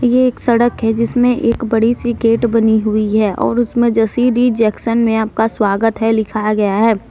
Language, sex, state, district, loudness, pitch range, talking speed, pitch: Hindi, female, Jharkhand, Deoghar, -14 LUFS, 220-240 Hz, 210 wpm, 225 Hz